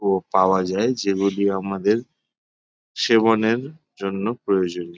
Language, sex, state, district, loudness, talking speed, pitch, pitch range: Bengali, male, West Bengal, Paschim Medinipur, -21 LUFS, 95 wpm, 100 Hz, 95-115 Hz